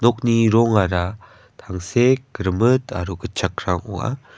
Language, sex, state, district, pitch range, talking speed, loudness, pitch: Garo, male, Meghalaya, West Garo Hills, 95-120 Hz, 80 wpm, -20 LUFS, 110 Hz